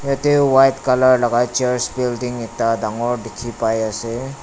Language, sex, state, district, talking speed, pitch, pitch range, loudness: Nagamese, male, Nagaland, Dimapur, 150 wpm, 120 Hz, 115-130 Hz, -18 LUFS